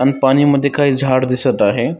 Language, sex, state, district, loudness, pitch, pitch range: Marathi, male, Maharashtra, Dhule, -14 LUFS, 135 Hz, 130-140 Hz